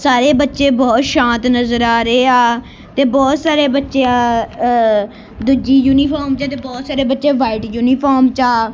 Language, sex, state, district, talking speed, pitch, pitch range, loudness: Punjabi, female, Punjab, Kapurthala, 165 wpm, 260 Hz, 240-275 Hz, -13 LUFS